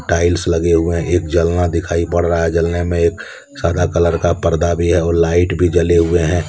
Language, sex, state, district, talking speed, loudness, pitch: Hindi, male, Jharkhand, Deoghar, 220 wpm, -15 LUFS, 85 Hz